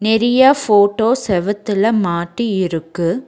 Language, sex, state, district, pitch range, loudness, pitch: Tamil, female, Tamil Nadu, Nilgiris, 185-230 Hz, -15 LUFS, 210 Hz